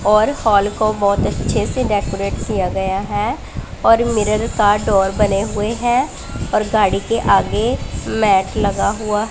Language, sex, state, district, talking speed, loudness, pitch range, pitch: Hindi, female, Punjab, Pathankot, 160 wpm, -17 LUFS, 200-220 Hz, 210 Hz